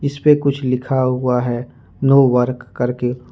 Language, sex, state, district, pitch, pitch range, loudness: Hindi, male, Jharkhand, Ranchi, 125 Hz, 125-135 Hz, -17 LUFS